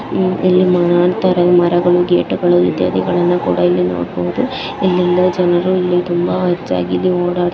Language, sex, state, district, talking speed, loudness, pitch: Kannada, female, Karnataka, Chamarajanagar, 120 wpm, -14 LUFS, 175 Hz